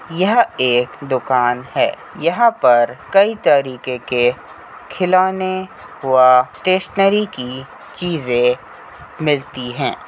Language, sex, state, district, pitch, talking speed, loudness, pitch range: Hindi, male, Uttar Pradesh, Hamirpur, 135 Hz, 95 wpm, -16 LUFS, 125-185 Hz